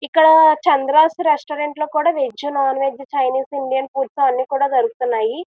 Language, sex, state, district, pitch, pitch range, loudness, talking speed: Telugu, female, Andhra Pradesh, Visakhapatnam, 280 Hz, 265-305 Hz, -17 LUFS, 145 wpm